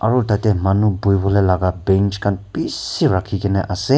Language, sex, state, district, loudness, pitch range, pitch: Nagamese, male, Nagaland, Kohima, -18 LUFS, 95-105 Hz, 100 Hz